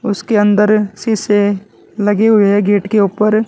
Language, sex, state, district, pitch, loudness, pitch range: Hindi, male, Haryana, Jhajjar, 205 Hz, -13 LUFS, 205-215 Hz